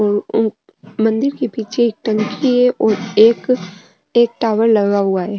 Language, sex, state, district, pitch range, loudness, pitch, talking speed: Rajasthani, female, Rajasthan, Nagaur, 205-235 Hz, -16 LUFS, 220 Hz, 145 wpm